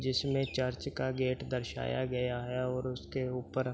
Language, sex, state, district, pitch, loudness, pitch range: Hindi, male, Uttar Pradesh, Hamirpur, 130 Hz, -35 LUFS, 125-130 Hz